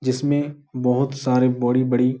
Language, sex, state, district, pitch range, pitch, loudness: Hindi, male, Bihar, Jahanabad, 125-140 Hz, 130 Hz, -21 LUFS